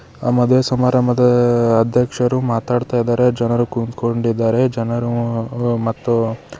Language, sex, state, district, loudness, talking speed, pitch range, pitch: Kannada, male, Karnataka, Bidar, -17 LUFS, 90 wpm, 115-125 Hz, 120 Hz